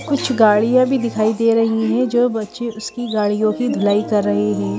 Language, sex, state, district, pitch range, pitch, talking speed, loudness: Hindi, female, Madhya Pradesh, Bhopal, 210-240 Hz, 225 Hz, 200 wpm, -17 LUFS